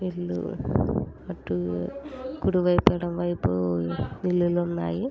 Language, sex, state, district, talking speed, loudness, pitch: Telugu, female, Andhra Pradesh, Srikakulam, 45 wpm, -26 LUFS, 175 Hz